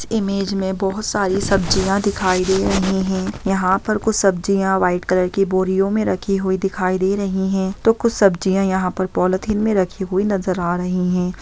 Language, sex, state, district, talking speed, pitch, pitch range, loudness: Hindi, female, Bihar, Begusarai, 180 wpm, 190 Hz, 185-200 Hz, -19 LUFS